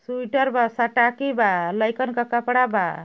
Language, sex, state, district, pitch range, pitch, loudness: Bhojpuri, female, Uttar Pradesh, Ghazipur, 225-250 Hz, 240 Hz, -21 LUFS